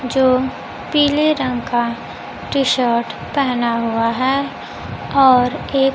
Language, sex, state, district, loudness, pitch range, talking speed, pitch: Hindi, female, Bihar, Kaimur, -17 LUFS, 240-275 Hz, 110 wpm, 260 Hz